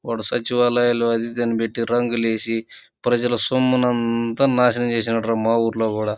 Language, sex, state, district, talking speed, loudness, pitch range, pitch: Telugu, male, Andhra Pradesh, Chittoor, 135 wpm, -20 LUFS, 115-120 Hz, 115 Hz